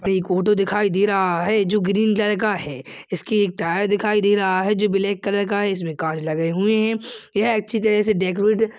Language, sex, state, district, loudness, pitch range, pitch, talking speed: Hindi, male, Chhattisgarh, Balrampur, -20 LUFS, 190-210 Hz, 205 Hz, 230 wpm